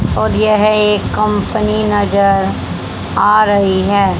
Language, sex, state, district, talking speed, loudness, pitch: Hindi, female, Haryana, Jhajjar, 115 wpm, -13 LUFS, 200 Hz